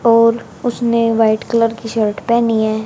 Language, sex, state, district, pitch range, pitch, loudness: Hindi, female, Haryana, Charkhi Dadri, 220-235 Hz, 230 Hz, -15 LUFS